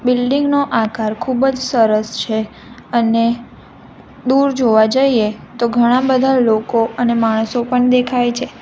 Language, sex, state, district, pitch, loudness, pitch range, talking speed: Gujarati, female, Gujarat, Valsad, 240 Hz, -15 LUFS, 225-255 Hz, 140 wpm